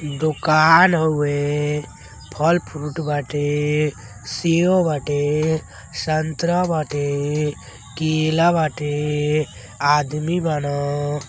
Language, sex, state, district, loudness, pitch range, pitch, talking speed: Bhojpuri, male, Uttar Pradesh, Deoria, -20 LUFS, 145-155 Hz, 150 Hz, 75 wpm